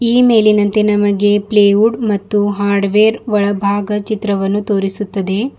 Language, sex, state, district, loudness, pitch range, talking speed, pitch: Kannada, female, Karnataka, Bidar, -14 LUFS, 200-215 Hz, 120 wpm, 205 Hz